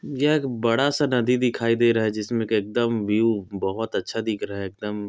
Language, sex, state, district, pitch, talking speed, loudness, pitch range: Hindi, male, Chhattisgarh, Korba, 115 Hz, 210 wpm, -23 LUFS, 105-120 Hz